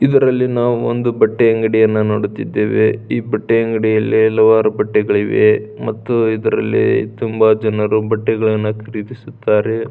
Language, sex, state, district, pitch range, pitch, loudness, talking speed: Kannada, male, Karnataka, Belgaum, 105-115 Hz, 110 Hz, -15 LUFS, 95 wpm